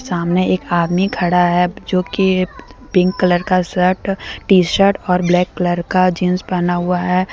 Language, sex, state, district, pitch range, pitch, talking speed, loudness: Hindi, female, Jharkhand, Deoghar, 180-185 Hz, 180 Hz, 170 wpm, -16 LUFS